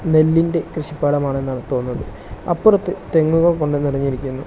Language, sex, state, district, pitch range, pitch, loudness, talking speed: Malayalam, male, Kerala, Kasaragod, 135-165 Hz, 150 Hz, -18 LUFS, 95 wpm